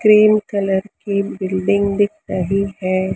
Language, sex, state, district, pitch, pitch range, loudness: Hindi, female, Maharashtra, Mumbai Suburban, 200 Hz, 190-205 Hz, -18 LUFS